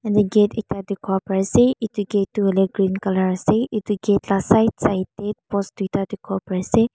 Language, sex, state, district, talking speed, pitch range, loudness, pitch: Nagamese, female, Mizoram, Aizawl, 200 wpm, 195-210 Hz, -21 LUFS, 200 Hz